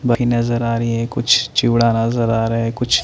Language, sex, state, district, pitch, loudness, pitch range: Hindi, male, Chandigarh, Chandigarh, 115 Hz, -17 LUFS, 115-120 Hz